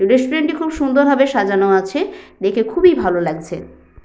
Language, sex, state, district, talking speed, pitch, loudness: Bengali, female, West Bengal, Purulia, 165 wpm, 225 Hz, -16 LUFS